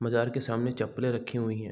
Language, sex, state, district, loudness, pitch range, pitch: Hindi, male, Chhattisgarh, Raigarh, -30 LUFS, 110-125 Hz, 120 Hz